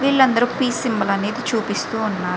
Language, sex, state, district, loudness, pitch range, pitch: Telugu, female, Andhra Pradesh, Visakhapatnam, -20 LUFS, 205-250 Hz, 225 Hz